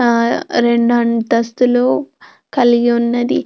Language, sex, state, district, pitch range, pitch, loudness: Telugu, female, Andhra Pradesh, Anantapur, 235-240 Hz, 240 Hz, -14 LUFS